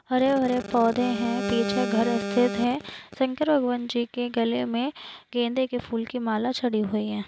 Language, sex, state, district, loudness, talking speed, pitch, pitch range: Hindi, female, Maharashtra, Nagpur, -25 LUFS, 155 wpm, 240 Hz, 230-250 Hz